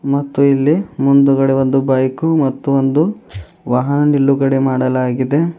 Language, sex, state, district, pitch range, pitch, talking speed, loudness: Kannada, male, Karnataka, Bidar, 130-145 Hz, 135 Hz, 105 wpm, -14 LUFS